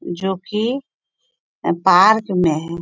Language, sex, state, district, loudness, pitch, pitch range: Hindi, female, Bihar, Bhagalpur, -17 LUFS, 195 Hz, 175-225 Hz